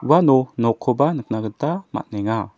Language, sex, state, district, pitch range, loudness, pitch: Garo, male, Meghalaya, South Garo Hills, 110-145 Hz, -20 LUFS, 125 Hz